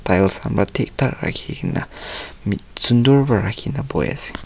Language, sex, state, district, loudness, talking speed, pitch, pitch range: Nagamese, male, Nagaland, Kohima, -19 LUFS, 175 wpm, 115 Hz, 95-125 Hz